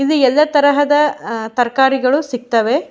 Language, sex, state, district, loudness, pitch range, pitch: Kannada, female, Karnataka, Shimoga, -14 LUFS, 245-290 Hz, 265 Hz